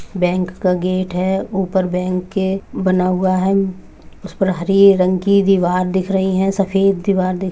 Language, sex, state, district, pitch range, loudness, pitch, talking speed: Hindi, female, Uttar Pradesh, Budaun, 185-195 Hz, -16 LUFS, 190 Hz, 185 wpm